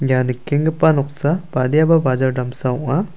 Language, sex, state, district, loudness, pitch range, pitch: Garo, male, Meghalaya, South Garo Hills, -17 LUFS, 130-160 Hz, 145 Hz